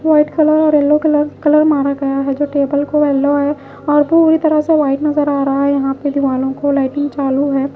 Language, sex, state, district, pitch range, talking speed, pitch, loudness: Hindi, female, Punjab, Pathankot, 275-300 Hz, 230 wpm, 285 Hz, -14 LUFS